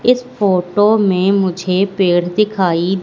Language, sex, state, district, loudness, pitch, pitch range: Hindi, female, Madhya Pradesh, Katni, -15 LUFS, 190 Hz, 180-205 Hz